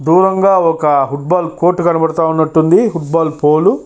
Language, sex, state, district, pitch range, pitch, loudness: Telugu, male, Andhra Pradesh, Chittoor, 155-175 Hz, 165 Hz, -12 LUFS